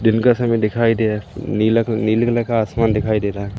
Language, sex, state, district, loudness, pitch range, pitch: Hindi, male, Madhya Pradesh, Umaria, -18 LUFS, 110-115 Hz, 110 Hz